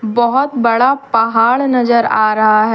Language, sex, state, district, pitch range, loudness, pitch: Hindi, female, Jharkhand, Deoghar, 225-250 Hz, -12 LUFS, 235 Hz